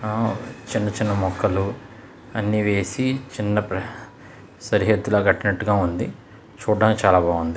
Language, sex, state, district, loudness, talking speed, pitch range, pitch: Telugu, male, Andhra Pradesh, Krishna, -22 LUFS, 105 wpm, 95-110 Hz, 105 Hz